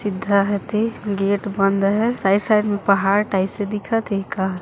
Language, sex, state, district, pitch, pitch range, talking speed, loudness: Hindi, female, Chhattisgarh, Jashpur, 200 Hz, 195-210 Hz, 205 wpm, -20 LUFS